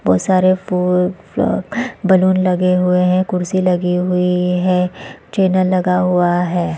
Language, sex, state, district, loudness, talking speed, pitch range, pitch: Hindi, female, Chhattisgarh, Bastar, -16 LUFS, 150 wpm, 180-185 Hz, 180 Hz